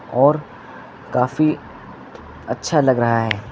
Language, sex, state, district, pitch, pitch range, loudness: Hindi, male, Uttar Pradesh, Lucknow, 120 Hz, 110-130 Hz, -19 LUFS